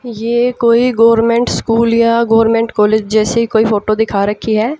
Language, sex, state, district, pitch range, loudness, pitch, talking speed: Hindi, female, Haryana, Jhajjar, 220-235 Hz, -12 LUFS, 230 Hz, 165 wpm